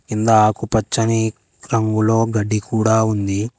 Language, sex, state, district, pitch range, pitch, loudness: Telugu, male, Telangana, Hyderabad, 110-115 Hz, 110 Hz, -18 LUFS